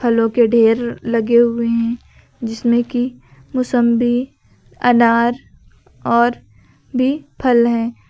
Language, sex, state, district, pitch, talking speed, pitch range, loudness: Hindi, female, Uttar Pradesh, Lucknow, 235 Hz, 105 wpm, 230-245 Hz, -16 LUFS